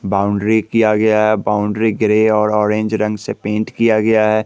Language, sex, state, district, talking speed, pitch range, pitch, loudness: Hindi, male, Bihar, West Champaran, 190 wpm, 105-110 Hz, 110 Hz, -15 LUFS